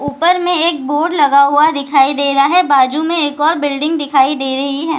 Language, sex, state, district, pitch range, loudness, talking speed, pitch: Hindi, female, Bihar, Jahanabad, 280-320 Hz, -13 LUFS, 240 wpm, 290 Hz